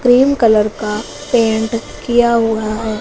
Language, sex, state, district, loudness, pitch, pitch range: Hindi, female, Punjab, Fazilka, -15 LUFS, 225 Hz, 215-240 Hz